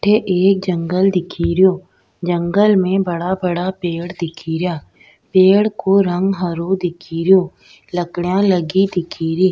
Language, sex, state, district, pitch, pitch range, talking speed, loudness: Rajasthani, female, Rajasthan, Nagaur, 180 Hz, 175-190 Hz, 140 wpm, -17 LUFS